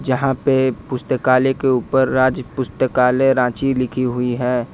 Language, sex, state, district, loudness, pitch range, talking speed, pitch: Hindi, male, Jharkhand, Ranchi, -18 LUFS, 125-130 Hz, 140 wpm, 130 Hz